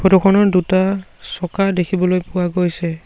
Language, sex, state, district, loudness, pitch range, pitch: Assamese, male, Assam, Sonitpur, -17 LUFS, 180-190 Hz, 185 Hz